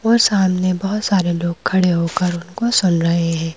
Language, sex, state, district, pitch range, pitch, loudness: Hindi, female, Madhya Pradesh, Bhopal, 170-200 Hz, 180 Hz, -17 LUFS